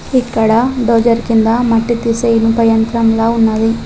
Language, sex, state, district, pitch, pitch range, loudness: Telugu, female, Telangana, Adilabad, 230 Hz, 225-235 Hz, -12 LUFS